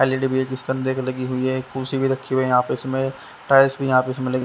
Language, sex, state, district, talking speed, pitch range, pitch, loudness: Hindi, male, Haryana, Rohtak, 310 wpm, 130-135 Hz, 130 Hz, -21 LUFS